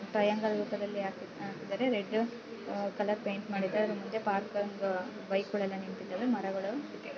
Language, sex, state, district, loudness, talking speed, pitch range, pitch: Kannada, female, Karnataka, Bellary, -34 LUFS, 125 wpm, 195-215 Hz, 205 Hz